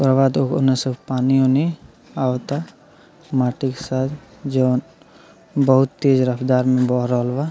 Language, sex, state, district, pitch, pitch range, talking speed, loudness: Bhojpuri, male, Bihar, Muzaffarpur, 130 Hz, 125-140 Hz, 130 wpm, -19 LUFS